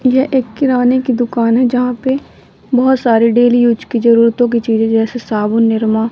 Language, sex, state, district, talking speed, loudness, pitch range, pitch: Hindi, female, Madhya Pradesh, Katni, 185 wpm, -13 LUFS, 225-250 Hz, 240 Hz